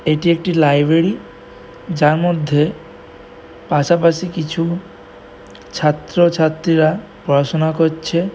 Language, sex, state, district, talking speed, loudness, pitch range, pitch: Bengali, male, West Bengal, Purulia, 85 wpm, -16 LUFS, 150-170 Hz, 160 Hz